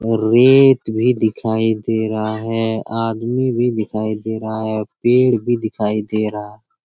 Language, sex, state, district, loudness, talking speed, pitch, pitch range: Hindi, male, Bihar, Jamui, -17 LUFS, 165 wpm, 110 Hz, 110-115 Hz